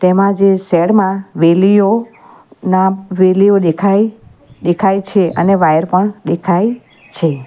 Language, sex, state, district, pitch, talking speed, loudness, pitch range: Gujarati, female, Gujarat, Valsad, 190 Hz, 115 wpm, -13 LUFS, 180-200 Hz